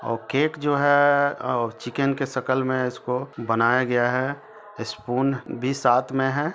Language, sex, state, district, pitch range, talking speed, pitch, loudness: Hindi, male, Jharkhand, Sahebganj, 120-140 Hz, 145 wpm, 130 Hz, -23 LUFS